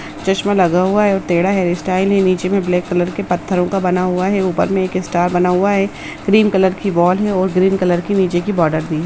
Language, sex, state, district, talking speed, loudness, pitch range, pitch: Hindi, female, Bihar, East Champaran, 265 wpm, -15 LUFS, 180-195 Hz, 185 Hz